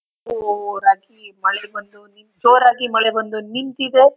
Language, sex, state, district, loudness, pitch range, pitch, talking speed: Kannada, female, Karnataka, Chamarajanagar, -17 LUFS, 205-250 Hz, 220 Hz, 115 wpm